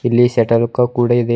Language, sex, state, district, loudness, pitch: Kannada, male, Karnataka, Bidar, -15 LUFS, 120 Hz